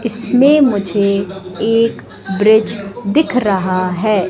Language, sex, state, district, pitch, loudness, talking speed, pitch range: Hindi, female, Madhya Pradesh, Katni, 210 Hz, -14 LUFS, 95 wpm, 195-230 Hz